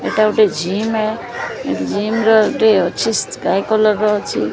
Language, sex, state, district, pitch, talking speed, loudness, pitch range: Odia, female, Odisha, Sambalpur, 215 Hz, 135 wpm, -16 LUFS, 200-220 Hz